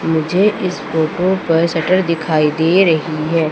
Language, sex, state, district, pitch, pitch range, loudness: Hindi, female, Madhya Pradesh, Umaria, 165 Hz, 160-185 Hz, -15 LUFS